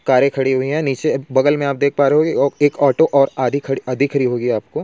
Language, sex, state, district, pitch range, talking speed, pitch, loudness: Hindi, male, Chhattisgarh, Kabirdham, 135-145 Hz, 175 wpm, 140 Hz, -17 LUFS